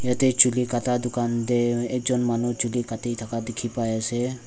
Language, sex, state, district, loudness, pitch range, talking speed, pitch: Nagamese, male, Nagaland, Dimapur, -24 LUFS, 120-125 Hz, 175 wpm, 120 Hz